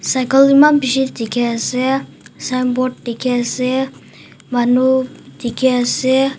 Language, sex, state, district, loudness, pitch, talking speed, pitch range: Nagamese, female, Nagaland, Dimapur, -16 LUFS, 255 Hz, 115 wpm, 245-265 Hz